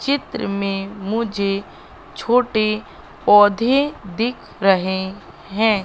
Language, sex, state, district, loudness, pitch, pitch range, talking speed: Hindi, female, Madhya Pradesh, Katni, -19 LUFS, 205 Hz, 195-230 Hz, 80 wpm